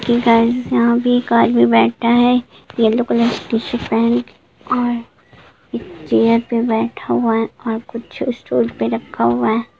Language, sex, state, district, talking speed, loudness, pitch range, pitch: Hindi, female, Bihar, Gopalganj, 165 wpm, -16 LUFS, 225-240 Hz, 230 Hz